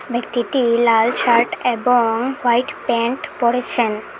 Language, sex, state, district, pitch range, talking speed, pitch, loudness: Bengali, female, Assam, Hailakandi, 235-245 Hz, 100 wpm, 240 Hz, -18 LUFS